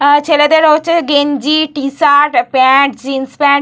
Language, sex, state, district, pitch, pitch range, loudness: Bengali, female, Jharkhand, Jamtara, 285 Hz, 275-305 Hz, -11 LUFS